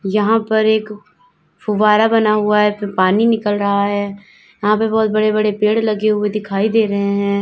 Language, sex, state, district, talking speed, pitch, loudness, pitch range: Hindi, female, Uttar Pradesh, Lalitpur, 185 wpm, 210 Hz, -16 LUFS, 200-215 Hz